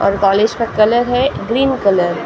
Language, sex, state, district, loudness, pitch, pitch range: Hindi, female, Maharashtra, Gondia, -14 LUFS, 220 Hz, 195-245 Hz